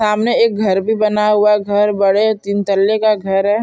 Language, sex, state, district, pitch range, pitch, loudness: Hindi, female, Chhattisgarh, Bilaspur, 200-215 Hz, 210 Hz, -14 LUFS